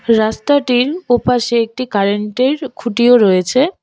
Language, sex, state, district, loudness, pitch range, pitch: Bengali, female, West Bengal, Alipurduar, -14 LUFS, 225-260 Hz, 245 Hz